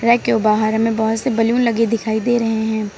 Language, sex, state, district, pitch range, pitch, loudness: Hindi, female, Uttar Pradesh, Lucknow, 220-235 Hz, 225 Hz, -17 LUFS